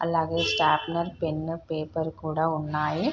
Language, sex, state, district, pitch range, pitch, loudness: Telugu, female, Andhra Pradesh, Srikakulam, 155-165 Hz, 160 Hz, -27 LUFS